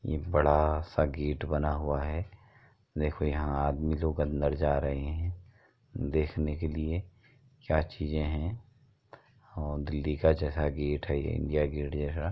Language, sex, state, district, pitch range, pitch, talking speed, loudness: Hindi, male, Uttar Pradesh, Muzaffarnagar, 75-85 Hz, 75 Hz, 155 wpm, -31 LUFS